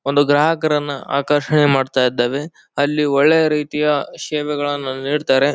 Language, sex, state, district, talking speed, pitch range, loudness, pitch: Kannada, male, Karnataka, Bijapur, 95 wpm, 140-150 Hz, -17 LUFS, 145 Hz